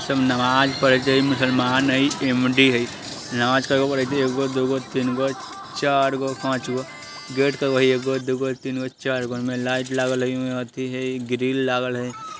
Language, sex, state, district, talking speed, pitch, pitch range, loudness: Bajjika, male, Bihar, Vaishali, 155 wpm, 130 Hz, 130-135 Hz, -21 LUFS